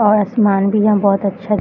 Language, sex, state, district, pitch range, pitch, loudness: Hindi, female, Bihar, Bhagalpur, 200-210 Hz, 205 Hz, -14 LUFS